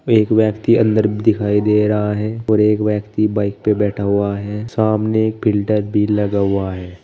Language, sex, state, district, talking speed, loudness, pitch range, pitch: Hindi, male, Uttar Pradesh, Saharanpur, 195 wpm, -17 LUFS, 105-110 Hz, 105 Hz